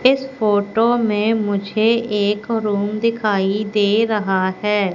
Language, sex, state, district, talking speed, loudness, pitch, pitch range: Hindi, female, Madhya Pradesh, Katni, 120 wpm, -18 LUFS, 210 Hz, 205-225 Hz